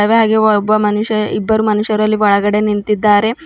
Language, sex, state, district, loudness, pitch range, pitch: Kannada, female, Karnataka, Bidar, -13 LUFS, 210-220 Hz, 215 Hz